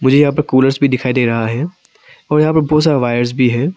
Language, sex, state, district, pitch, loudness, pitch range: Hindi, male, Arunachal Pradesh, Papum Pare, 135 Hz, -14 LUFS, 125-150 Hz